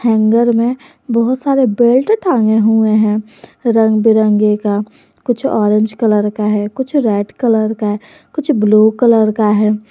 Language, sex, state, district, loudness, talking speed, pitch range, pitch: Hindi, female, Jharkhand, Garhwa, -13 LUFS, 150 wpm, 215-240 Hz, 220 Hz